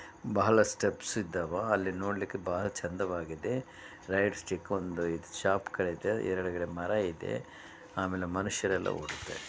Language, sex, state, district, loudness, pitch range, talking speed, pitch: Kannada, male, Karnataka, Bellary, -33 LUFS, 90-100 Hz, 120 wpm, 95 Hz